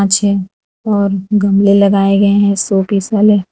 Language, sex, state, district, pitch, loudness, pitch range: Hindi, female, Gujarat, Valsad, 200 Hz, -12 LUFS, 195-205 Hz